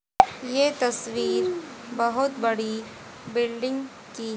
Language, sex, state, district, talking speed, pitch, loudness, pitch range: Hindi, female, Haryana, Jhajjar, 80 wpm, 245 Hz, -26 LUFS, 235-275 Hz